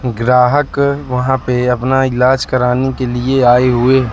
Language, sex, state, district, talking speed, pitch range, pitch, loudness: Hindi, male, Madhya Pradesh, Katni, 145 wpm, 125-130 Hz, 125 Hz, -13 LUFS